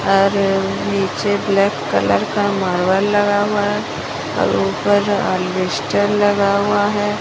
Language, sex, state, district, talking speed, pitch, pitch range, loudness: Hindi, female, Odisha, Sambalpur, 125 wpm, 200 Hz, 190-205 Hz, -17 LUFS